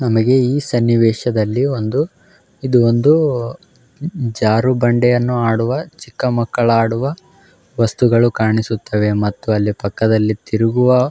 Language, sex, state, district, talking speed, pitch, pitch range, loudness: Kannada, male, Karnataka, Bellary, 85 wpm, 120 Hz, 110-130 Hz, -16 LUFS